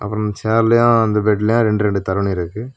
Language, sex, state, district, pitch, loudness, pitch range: Tamil, male, Tamil Nadu, Kanyakumari, 105 Hz, -16 LUFS, 105-115 Hz